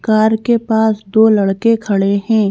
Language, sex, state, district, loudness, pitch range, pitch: Hindi, female, Madhya Pradesh, Bhopal, -14 LUFS, 205-220 Hz, 220 Hz